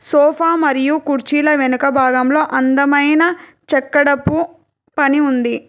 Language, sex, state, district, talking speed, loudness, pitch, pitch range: Telugu, female, Telangana, Hyderabad, 95 wpm, -14 LUFS, 290 Hz, 275-310 Hz